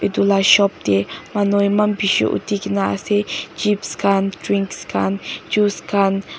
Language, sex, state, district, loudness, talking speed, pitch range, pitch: Nagamese, female, Nagaland, Dimapur, -18 LUFS, 160 wpm, 170-205 Hz, 200 Hz